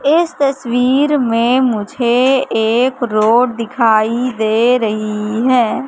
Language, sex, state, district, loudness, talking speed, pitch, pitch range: Hindi, female, Madhya Pradesh, Katni, -14 LUFS, 100 wpm, 240 Hz, 225-260 Hz